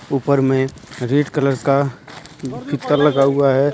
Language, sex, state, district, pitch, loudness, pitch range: Hindi, male, Jharkhand, Deoghar, 140 Hz, -17 LUFS, 135-145 Hz